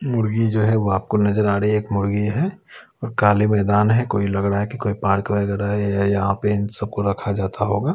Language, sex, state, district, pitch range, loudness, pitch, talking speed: Hindi, male, Chhattisgarh, Raipur, 100-105 Hz, -20 LUFS, 105 Hz, 240 wpm